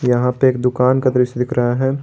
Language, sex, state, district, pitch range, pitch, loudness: Hindi, male, Jharkhand, Garhwa, 125-130 Hz, 125 Hz, -16 LUFS